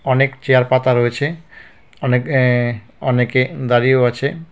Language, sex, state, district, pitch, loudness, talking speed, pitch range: Bengali, male, West Bengal, Cooch Behar, 130 Hz, -16 LUFS, 120 wpm, 125-135 Hz